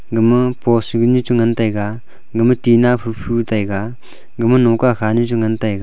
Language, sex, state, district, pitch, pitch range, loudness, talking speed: Wancho, male, Arunachal Pradesh, Longding, 115 Hz, 110-120 Hz, -16 LUFS, 165 wpm